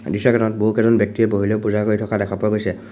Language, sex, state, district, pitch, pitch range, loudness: Assamese, male, Assam, Sonitpur, 105 Hz, 100-110 Hz, -19 LUFS